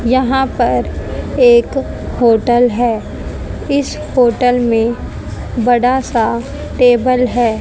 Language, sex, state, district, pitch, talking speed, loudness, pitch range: Hindi, female, Haryana, Jhajjar, 245 Hz, 95 wpm, -14 LUFS, 240-255 Hz